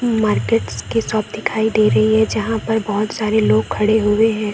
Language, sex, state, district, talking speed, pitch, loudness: Hindi, female, Bihar, Saran, 200 wpm, 215 Hz, -17 LUFS